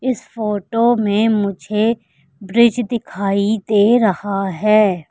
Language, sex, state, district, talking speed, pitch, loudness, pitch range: Hindi, female, Madhya Pradesh, Katni, 105 wpm, 215 Hz, -17 LUFS, 200-230 Hz